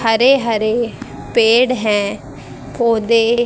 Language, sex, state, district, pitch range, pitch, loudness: Hindi, female, Haryana, Rohtak, 225-240 Hz, 230 Hz, -15 LUFS